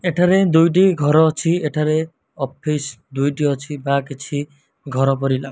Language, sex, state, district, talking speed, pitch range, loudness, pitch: Odia, male, Odisha, Malkangiri, 130 wpm, 140-160 Hz, -18 LUFS, 145 Hz